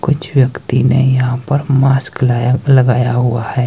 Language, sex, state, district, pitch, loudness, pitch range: Hindi, male, Himachal Pradesh, Shimla, 130 Hz, -13 LUFS, 125-135 Hz